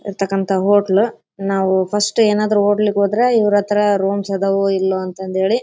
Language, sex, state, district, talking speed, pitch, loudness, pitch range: Kannada, female, Karnataka, Bellary, 140 wpm, 200 Hz, -16 LUFS, 195-210 Hz